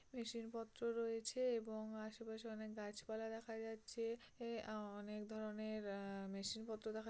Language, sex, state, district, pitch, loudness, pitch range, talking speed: Bengali, female, West Bengal, Purulia, 220 Hz, -48 LUFS, 215-230 Hz, 125 wpm